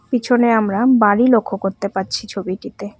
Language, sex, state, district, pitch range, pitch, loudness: Bengali, female, West Bengal, Cooch Behar, 195-245 Hz, 210 Hz, -17 LUFS